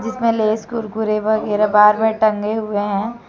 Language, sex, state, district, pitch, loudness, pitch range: Hindi, female, Jharkhand, Deoghar, 215 Hz, -17 LUFS, 210-220 Hz